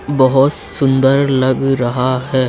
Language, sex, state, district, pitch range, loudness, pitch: Hindi, male, Uttar Pradesh, Lucknow, 130-135 Hz, -14 LUFS, 135 Hz